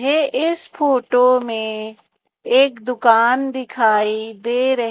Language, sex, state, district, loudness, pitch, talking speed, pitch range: Hindi, female, Madhya Pradesh, Umaria, -17 LUFS, 250 Hz, 100 wpm, 225-265 Hz